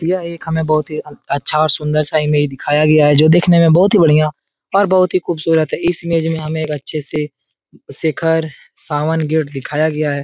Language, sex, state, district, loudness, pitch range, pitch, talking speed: Hindi, male, Bihar, Jahanabad, -15 LUFS, 150-165 Hz, 155 Hz, 215 wpm